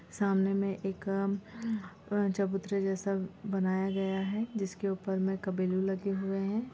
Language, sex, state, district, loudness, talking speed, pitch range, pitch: Hindi, female, Chhattisgarh, Rajnandgaon, -33 LUFS, 140 wpm, 190-200 Hz, 195 Hz